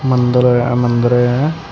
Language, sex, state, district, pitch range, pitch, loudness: Punjabi, male, Karnataka, Bangalore, 120-130 Hz, 125 Hz, -14 LUFS